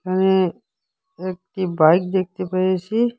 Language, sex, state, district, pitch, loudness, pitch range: Bengali, female, Assam, Hailakandi, 185 Hz, -20 LUFS, 185-190 Hz